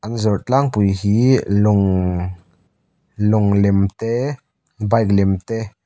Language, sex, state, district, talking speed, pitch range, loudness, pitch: Mizo, male, Mizoram, Aizawl, 115 wpm, 95-115 Hz, -17 LUFS, 100 Hz